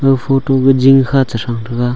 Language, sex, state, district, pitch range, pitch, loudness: Wancho, male, Arunachal Pradesh, Longding, 120-135 Hz, 135 Hz, -12 LUFS